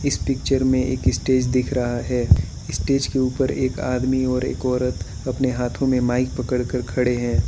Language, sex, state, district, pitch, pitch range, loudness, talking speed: Hindi, male, Arunachal Pradesh, Lower Dibang Valley, 125 Hz, 120-130 Hz, -21 LUFS, 190 wpm